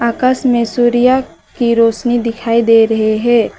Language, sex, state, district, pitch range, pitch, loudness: Hindi, female, West Bengal, Alipurduar, 230-240 Hz, 235 Hz, -13 LUFS